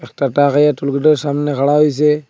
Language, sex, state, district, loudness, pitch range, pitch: Bengali, male, Assam, Hailakandi, -14 LUFS, 140-150 Hz, 145 Hz